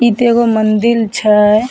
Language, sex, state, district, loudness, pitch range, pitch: Maithili, female, Bihar, Samastipur, -11 LUFS, 215-235 Hz, 225 Hz